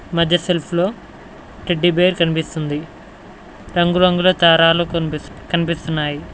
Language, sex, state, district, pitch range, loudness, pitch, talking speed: Telugu, male, Telangana, Mahabubabad, 160-175 Hz, -17 LUFS, 170 Hz, 85 wpm